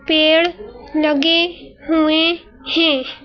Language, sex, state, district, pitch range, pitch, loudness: Hindi, female, Madhya Pradesh, Bhopal, 310-335 Hz, 320 Hz, -15 LUFS